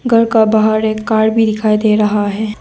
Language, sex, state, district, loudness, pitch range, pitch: Hindi, female, Arunachal Pradesh, Lower Dibang Valley, -13 LUFS, 215-220 Hz, 220 Hz